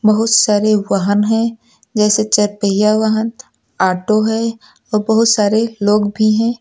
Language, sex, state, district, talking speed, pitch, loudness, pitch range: Hindi, male, Uttar Pradesh, Lucknow, 145 wpm, 215 Hz, -14 LUFS, 210-225 Hz